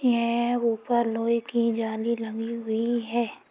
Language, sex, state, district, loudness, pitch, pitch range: Hindi, female, Uttar Pradesh, Deoria, -26 LUFS, 235 Hz, 225-235 Hz